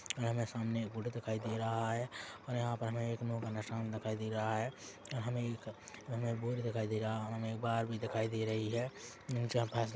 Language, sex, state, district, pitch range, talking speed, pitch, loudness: Hindi, male, Chhattisgarh, Korba, 110-120 Hz, 235 wpm, 115 Hz, -39 LUFS